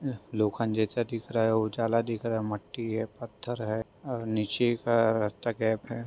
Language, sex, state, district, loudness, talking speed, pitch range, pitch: Hindi, female, Maharashtra, Dhule, -30 LUFS, 190 wpm, 110-115 Hz, 115 Hz